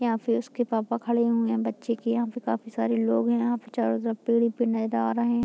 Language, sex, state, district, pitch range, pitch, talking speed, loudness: Hindi, female, Bihar, Muzaffarpur, 225-235 Hz, 235 Hz, 265 wpm, -26 LUFS